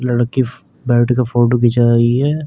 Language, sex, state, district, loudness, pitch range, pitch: Hindi, male, Uttar Pradesh, Jyotiba Phule Nagar, -14 LUFS, 120-125 Hz, 120 Hz